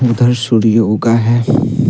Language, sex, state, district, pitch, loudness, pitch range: Hindi, male, Jharkhand, Deoghar, 120 Hz, -12 LUFS, 115-125 Hz